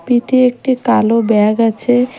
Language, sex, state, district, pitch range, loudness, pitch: Bengali, female, West Bengal, Cooch Behar, 225-250 Hz, -13 LUFS, 245 Hz